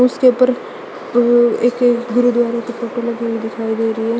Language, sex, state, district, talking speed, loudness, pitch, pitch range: Hindi, female, Chandigarh, Chandigarh, 185 wpm, -16 LUFS, 240 Hz, 235-245 Hz